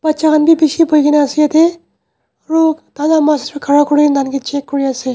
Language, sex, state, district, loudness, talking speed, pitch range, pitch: Nagamese, male, Nagaland, Dimapur, -13 LUFS, 220 wpm, 285-315 Hz, 300 Hz